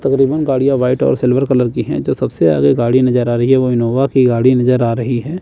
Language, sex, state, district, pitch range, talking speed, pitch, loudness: Hindi, male, Chandigarh, Chandigarh, 120-135 Hz, 265 wpm, 125 Hz, -14 LUFS